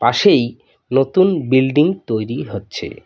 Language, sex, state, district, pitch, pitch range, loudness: Bengali, male, West Bengal, Cooch Behar, 135 Hz, 125-185 Hz, -16 LUFS